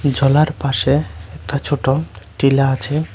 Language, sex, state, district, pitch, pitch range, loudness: Bengali, male, Tripura, West Tripura, 135 Hz, 130-145 Hz, -17 LUFS